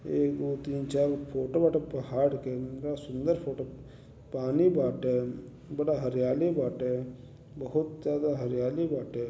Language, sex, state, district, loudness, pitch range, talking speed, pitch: Bhojpuri, male, Uttar Pradesh, Gorakhpur, -30 LUFS, 125-145 Hz, 130 wpm, 135 Hz